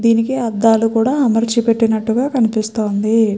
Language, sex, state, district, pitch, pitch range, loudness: Telugu, female, Andhra Pradesh, Chittoor, 225 Hz, 220-235 Hz, -15 LUFS